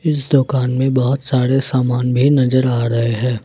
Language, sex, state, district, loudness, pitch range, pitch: Hindi, male, Jharkhand, Ranchi, -16 LUFS, 125-135 Hz, 130 Hz